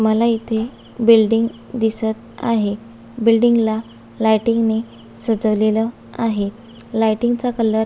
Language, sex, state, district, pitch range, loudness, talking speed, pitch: Marathi, female, Maharashtra, Sindhudurg, 220-230 Hz, -18 LUFS, 115 wpm, 225 Hz